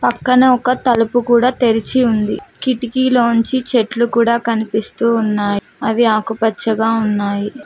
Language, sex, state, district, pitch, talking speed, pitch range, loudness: Telugu, female, Telangana, Mahabubabad, 235 Hz, 110 wpm, 220-245 Hz, -15 LUFS